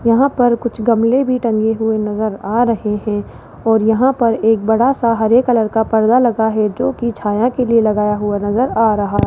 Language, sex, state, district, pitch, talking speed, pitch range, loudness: Hindi, male, Rajasthan, Jaipur, 225 Hz, 215 wpm, 215-240 Hz, -15 LUFS